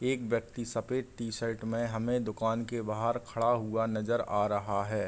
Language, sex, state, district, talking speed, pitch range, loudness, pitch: Hindi, male, Bihar, East Champaran, 175 wpm, 110-120 Hz, -32 LUFS, 115 Hz